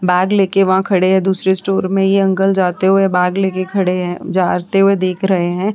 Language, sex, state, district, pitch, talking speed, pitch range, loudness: Hindi, female, Chhattisgarh, Korba, 190 Hz, 210 wpm, 185-195 Hz, -14 LUFS